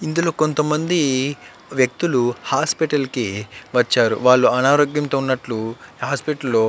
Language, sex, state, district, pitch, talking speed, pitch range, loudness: Telugu, male, Andhra Pradesh, Chittoor, 135 Hz, 105 wpm, 120-150 Hz, -19 LUFS